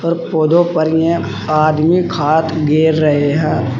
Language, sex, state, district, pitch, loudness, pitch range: Hindi, male, Uttar Pradesh, Saharanpur, 155 Hz, -14 LUFS, 150-165 Hz